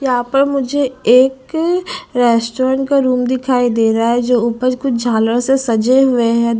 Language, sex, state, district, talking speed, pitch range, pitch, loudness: Hindi, female, Bihar, Patna, 175 wpm, 235-270 Hz, 250 Hz, -14 LUFS